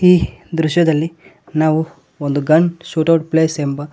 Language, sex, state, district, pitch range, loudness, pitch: Kannada, male, Karnataka, Koppal, 155-170 Hz, -16 LUFS, 160 Hz